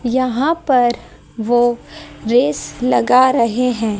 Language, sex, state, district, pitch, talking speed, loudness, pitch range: Hindi, female, Haryana, Jhajjar, 245 Hz, 105 wpm, -15 LUFS, 230-255 Hz